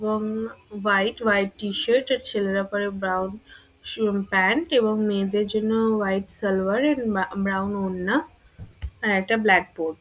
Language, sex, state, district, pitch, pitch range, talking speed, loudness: Bengali, female, West Bengal, Purulia, 205 Hz, 195-225 Hz, 155 wpm, -23 LUFS